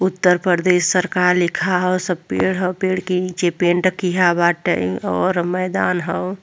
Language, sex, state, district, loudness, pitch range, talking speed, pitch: Bhojpuri, female, Uttar Pradesh, Deoria, -18 LUFS, 175-185 Hz, 170 wpm, 180 Hz